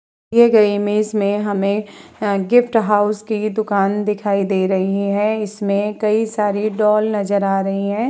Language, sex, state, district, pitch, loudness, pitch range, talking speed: Hindi, female, Uttar Pradesh, Hamirpur, 210 Hz, -17 LUFS, 200-215 Hz, 165 wpm